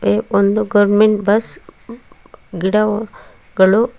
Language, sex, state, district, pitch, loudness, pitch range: Kannada, female, Karnataka, Bangalore, 210 Hz, -15 LUFS, 200-215 Hz